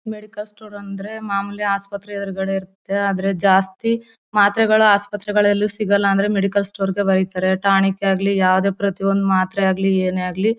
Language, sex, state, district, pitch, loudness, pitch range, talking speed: Kannada, female, Karnataka, Mysore, 200 Hz, -18 LUFS, 195-205 Hz, 145 wpm